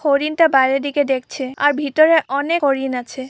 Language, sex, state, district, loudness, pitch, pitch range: Bengali, female, West Bengal, Purulia, -17 LUFS, 280 Hz, 265-300 Hz